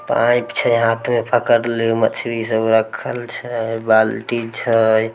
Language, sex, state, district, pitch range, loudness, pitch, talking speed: Maithili, male, Bihar, Samastipur, 110-120 Hz, -17 LUFS, 115 Hz, 130 wpm